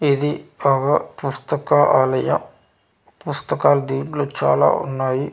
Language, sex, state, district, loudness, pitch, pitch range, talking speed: Telugu, male, Andhra Pradesh, Manyam, -19 LUFS, 135 Hz, 130-145 Hz, 90 wpm